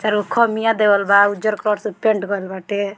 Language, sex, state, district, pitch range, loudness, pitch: Bhojpuri, female, Bihar, Muzaffarpur, 200-215 Hz, -17 LUFS, 210 Hz